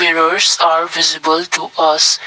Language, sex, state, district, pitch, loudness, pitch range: English, male, Assam, Kamrup Metropolitan, 165 Hz, -12 LUFS, 160-170 Hz